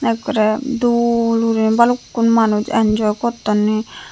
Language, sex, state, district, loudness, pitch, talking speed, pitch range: Chakma, female, Tripura, Unakoti, -16 LUFS, 230 Hz, 100 wpm, 215-235 Hz